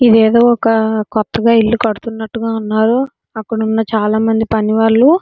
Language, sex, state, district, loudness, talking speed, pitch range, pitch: Telugu, female, Andhra Pradesh, Srikakulam, -13 LUFS, 140 wpm, 220-230 Hz, 225 Hz